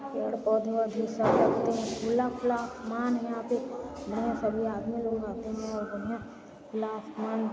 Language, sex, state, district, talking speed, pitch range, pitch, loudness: Hindi, female, Chhattisgarh, Sarguja, 160 wpm, 220-240 Hz, 225 Hz, -31 LUFS